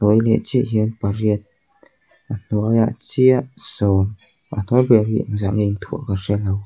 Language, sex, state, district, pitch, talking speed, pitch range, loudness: Mizo, male, Mizoram, Aizawl, 105 Hz, 170 wpm, 100-115 Hz, -19 LUFS